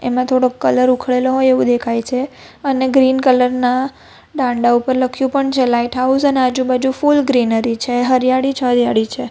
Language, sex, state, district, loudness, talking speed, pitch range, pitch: Gujarati, female, Gujarat, Valsad, -15 LUFS, 185 wpm, 245-265 Hz, 255 Hz